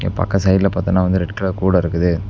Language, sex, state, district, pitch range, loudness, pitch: Tamil, male, Tamil Nadu, Namakkal, 90-100 Hz, -17 LUFS, 95 Hz